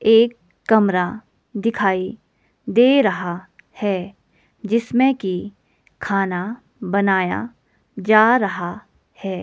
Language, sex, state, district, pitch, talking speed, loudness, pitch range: Hindi, female, Himachal Pradesh, Shimla, 200 Hz, 85 wpm, -19 LUFS, 185-225 Hz